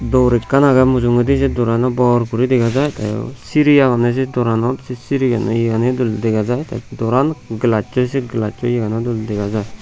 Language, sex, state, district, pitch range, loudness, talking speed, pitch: Chakma, male, Tripura, Unakoti, 115-130 Hz, -16 LUFS, 190 wpm, 120 Hz